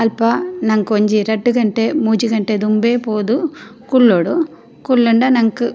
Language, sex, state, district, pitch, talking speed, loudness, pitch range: Tulu, female, Karnataka, Dakshina Kannada, 230 Hz, 135 wpm, -15 LUFS, 220-250 Hz